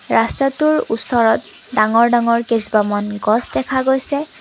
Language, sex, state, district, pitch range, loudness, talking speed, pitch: Assamese, female, Assam, Kamrup Metropolitan, 220-265 Hz, -16 LUFS, 110 wpm, 235 Hz